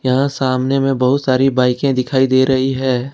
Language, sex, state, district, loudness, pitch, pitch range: Hindi, male, Jharkhand, Ranchi, -15 LUFS, 130 Hz, 130-135 Hz